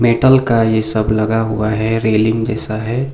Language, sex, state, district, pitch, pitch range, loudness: Hindi, male, Sikkim, Gangtok, 110 Hz, 110-115 Hz, -15 LUFS